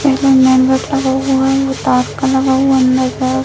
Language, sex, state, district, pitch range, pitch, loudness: Hindi, female, Bihar, Bhagalpur, 260-270 Hz, 265 Hz, -13 LUFS